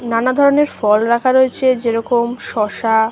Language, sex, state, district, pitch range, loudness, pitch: Bengali, female, West Bengal, Malda, 225-260 Hz, -15 LUFS, 235 Hz